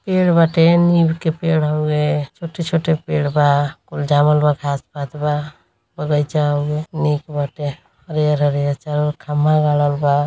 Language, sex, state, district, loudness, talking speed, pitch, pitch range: Hindi, female, Uttar Pradesh, Deoria, -18 LUFS, 150 wpm, 150 Hz, 145-155 Hz